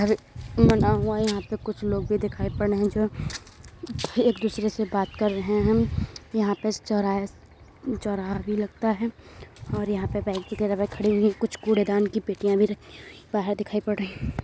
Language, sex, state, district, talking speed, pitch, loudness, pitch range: Hindi, female, Uttar Pradesh, Gorakhpur, 185 wpm, 210 Hz, -26 LUFS, 205-215 Hz